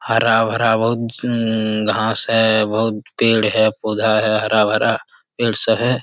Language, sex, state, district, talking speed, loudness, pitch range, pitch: Hindi, male, Bihar, Jamui, 120 wpm, -17 LUFS, 110-115 Hz, 110 Hz